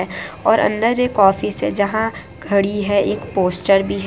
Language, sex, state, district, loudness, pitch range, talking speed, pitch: Hindi, female, Gujarat, Valsad, -18 LUFS, 195-215 Hz, 175 wpm, 200 Hz